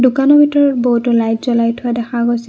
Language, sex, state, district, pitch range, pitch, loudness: Assamese, female, Assam, Kamrup Metropolitan, 235-265 Hz, 240 Hz, -13 LUFS